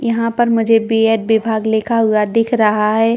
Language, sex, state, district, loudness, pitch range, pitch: Hindi, female, Chhattisgarh, Balrampur, -15 LUFS, 220-230 Hz, 225 Hz